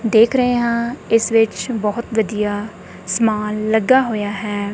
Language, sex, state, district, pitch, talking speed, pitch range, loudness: Punjabi, female, Punjab, Kapurthala, 220 Hz, 140 wpm, 210-235 Hz, -18 LUFS